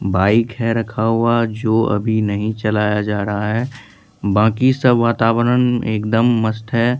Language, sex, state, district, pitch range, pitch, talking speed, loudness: Hindi, male, Bihar, Katihar, 105-115 Hz, 110 Hz, 145 wpm, -17 LUFS